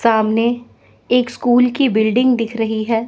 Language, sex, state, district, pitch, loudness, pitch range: Hindi, female, Chandigarh, Chandigarh, 235 Hz, -16 LUFS, 225-245 Hz